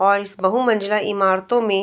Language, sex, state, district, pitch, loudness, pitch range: Hindi, female, Uttar Pradesh, Deoria, 200 Hz, -19 LUFS, 195-215 Hz